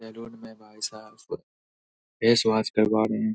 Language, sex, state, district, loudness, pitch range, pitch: Hindi, male, Bihar, Saharsa, -24 LUFS, 110-115 Hz, 110 Hz